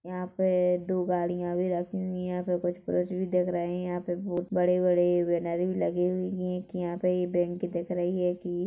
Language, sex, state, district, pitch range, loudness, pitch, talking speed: Hindi, male, Chhattisgarh, Korba, 175-180 Hz, -29 LUFS, 180 Hz, 235 wpm